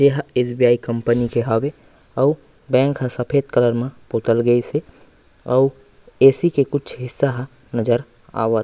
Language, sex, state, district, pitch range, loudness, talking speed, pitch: Chhattisgarhi, male, Chhattisgarh, Raigarh, 120-140 Hz, -19 LUFS, 145 wpm, 125 Hz